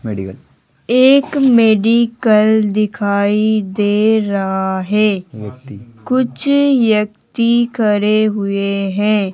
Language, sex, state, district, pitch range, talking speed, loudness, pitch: Hindi, male, Rajasthan, Jaipur, 195-225 Hz, 70 wpm, -14 LUFS, 210 Hz